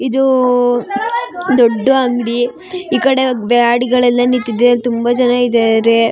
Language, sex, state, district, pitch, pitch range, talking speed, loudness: Kannada, female, Karnataka, Shimoga, 245 Hz, 240-260 Hz, 100 wpm, -13 LUFS